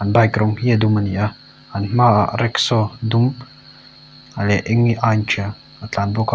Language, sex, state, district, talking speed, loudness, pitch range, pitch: Mizo, male, Mizoram, Aizawl, 190 wpm, -18 LUFS, 105-120 Hz, 110 Hz